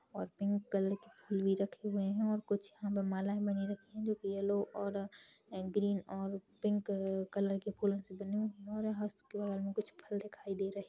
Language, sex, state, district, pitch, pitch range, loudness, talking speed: Hindi, female, Chhattisgarh, Rajnandgaon, 200 Hz, 195-210 Hz, -38 LUFS, 215 wpm